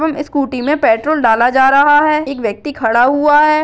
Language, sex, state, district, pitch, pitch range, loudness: Hindi, female, Uttarakhand, Uttarkashi, 285 Hz, 250-300 Hz, -12 LUFS